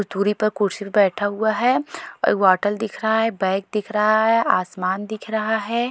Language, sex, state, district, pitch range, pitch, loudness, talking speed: Hindi, female, Goa, North and South Goa, 200-220 Hz, 210 Hz, -20 LUFS, 215 wpm